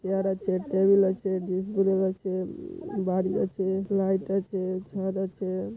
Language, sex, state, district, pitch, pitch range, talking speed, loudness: Bengali, male, West Bengal, Malda, 190 Hz, 185-195 Hz, 115 wpm, -27 LUFS